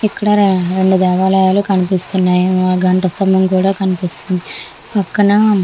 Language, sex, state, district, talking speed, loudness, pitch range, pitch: Telugu, female, Andhra Pradesh, Visakhapatnam, 95 wpm, -13 LUFS, 185-195 Hz, 190 Hz